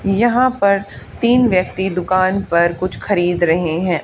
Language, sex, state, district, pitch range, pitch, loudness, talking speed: Hindi, female, Haryana, Charkhi Dadri, 175-200 Hz, 185 Hz, -16 LUFS, 150 wpm